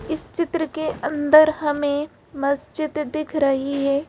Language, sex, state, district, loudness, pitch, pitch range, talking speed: Hindi, female, Madhya Pradesh, Bhopal, -21 LUFS, 300 Hz, 280-310 Hz, 130 wpm